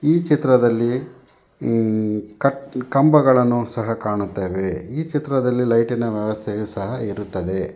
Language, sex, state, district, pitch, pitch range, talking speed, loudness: Kannada, male, Karnataka, Bangalore, 115 Hz, 105-130 Hz, 110 wpm, -20 LUFS